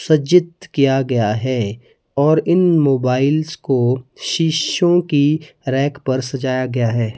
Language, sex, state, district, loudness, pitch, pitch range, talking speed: Hindi, male, Himachal Pradesh, Shimla, -17 LUFS, 135 Hz, 130-155 Hz, 125 wpm